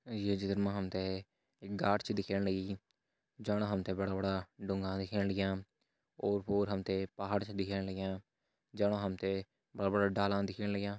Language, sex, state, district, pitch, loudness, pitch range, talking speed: Hindi, male, Uttarakhand, Tehri Garhwal, 100 Hz, -36 LUFS, 95-100 Hz, 180 wpm